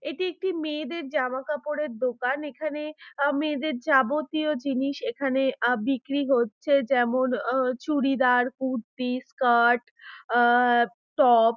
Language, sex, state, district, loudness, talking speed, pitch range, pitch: Bengali, female, West Bengal, Dakshin Dinajpur, -25 LUFS, 120 wpm, 250-300 Hz, 270 Hz